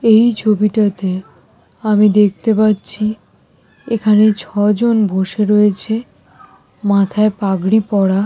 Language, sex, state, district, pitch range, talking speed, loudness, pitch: Bengali, male, West Bengal, Jalpaiguri, 200-215 Hz, 85 wpm, -14 LUFS, 210 Hz